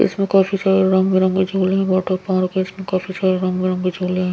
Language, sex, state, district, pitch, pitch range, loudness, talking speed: Hindi, female, Bihar, Patna, 185 Hz, 185-190 Hz, -18 LUFS, 260 wpm